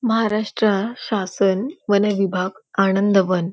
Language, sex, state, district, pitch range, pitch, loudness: Marathi, female, Maharashtra, Pune, 195-220 Hz, 200 Hz, -20 LUFS